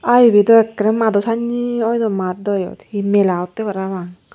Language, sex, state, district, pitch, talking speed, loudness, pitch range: Chakma, female, Tripura, Unakoti, 210 Hz, 205 wpm, -16 LUFS, 190-230 Hz